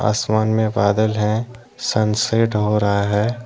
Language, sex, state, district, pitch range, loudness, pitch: Hindi, male, Jharkhand, Deoghar, 105-110 Hz, -19 LUFS, 110 Hz